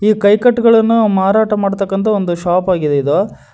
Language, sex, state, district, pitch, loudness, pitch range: Kannada, male, Karnataka, Koppal, 200 Hz, -13 LUFS, 185-215 Hz